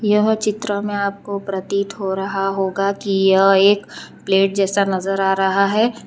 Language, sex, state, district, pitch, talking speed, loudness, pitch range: Hindi, female, Gujarat, Valsad, 195 Hz, 170 wpm, -18 LUFS, 195-205 Hz